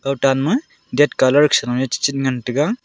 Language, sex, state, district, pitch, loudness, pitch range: Wancho, male, Arunachal Pradesh, Longding, 140 Hz, -17 LUFS, 130-145 Hz